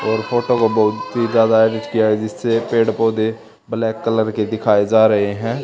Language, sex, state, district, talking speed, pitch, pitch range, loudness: Hindi, male, Haryana, Charkhi Dadri, 200 wpm, 110 Hz, 110-115 Hz, -17 LUFS